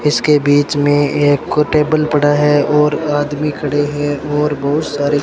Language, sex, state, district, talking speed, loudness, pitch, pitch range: Hindi, male, Rajasthan, Bikaner, 170 wpm, -14 LUFS, 145 Hz, 145-150 Hz